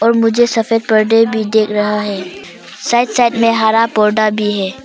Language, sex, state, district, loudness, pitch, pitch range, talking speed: Hindi, female, Arunachal Pradesh, Papum Pare, -13 LUFS, 220 Hz, 210-230 Hz, 175 wpm